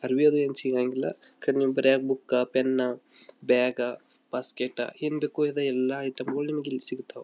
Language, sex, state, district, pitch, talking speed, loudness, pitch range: Kannada, male, Karnataka, Belgaum, 130 Hz, 140 wpm, -27 LUFS, 125-145 Hz